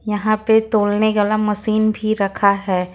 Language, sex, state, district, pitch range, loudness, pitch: Hindi, female, Jharkhand, Ranchi, 205-215 Hz, -17 LUFS, 210 Hz